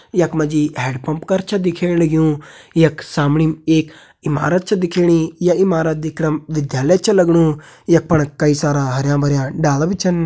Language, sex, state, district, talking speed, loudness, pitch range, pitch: Hindi, male, Uttarakhand, Uttarkashi, 175 wpm, -16 LUFS, 150-175 Hz, 160 Hz